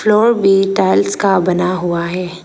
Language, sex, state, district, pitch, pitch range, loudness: Hindi, female, Arunachal Pradesh, Lower Dibang Valley, 180 Hz, 175-195 Hz, -14 LUFS